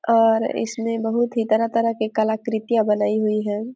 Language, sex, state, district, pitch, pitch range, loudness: Hindi, female, Jharkhand, Sahebganj, 225 Hz, 215-230 Hz, -21 LUFS